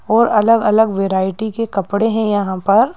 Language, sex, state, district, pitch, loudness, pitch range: Hindi, female, Madhya Pradesh, Bhopal, 215 Hz, -15 LUFS, 195-225 Hz